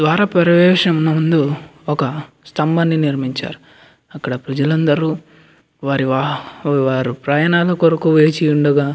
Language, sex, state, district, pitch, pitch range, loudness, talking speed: Telugu, male, Andhra Pradesh, Anantapur, 155 Hz, 140-160 Hz, -16 LUFS, 105 wpm